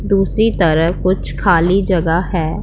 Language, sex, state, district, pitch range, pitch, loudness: Hindi, female, Punjab, Pathankot, 165-195 Hz, 180 Hz, -15 LUFS